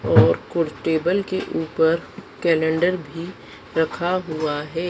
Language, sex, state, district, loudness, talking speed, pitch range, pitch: Hindi, female, Madhya Pradesh, Dhar, -22 LUFS, 120 wpm, 160-175 Hz, 165 Hz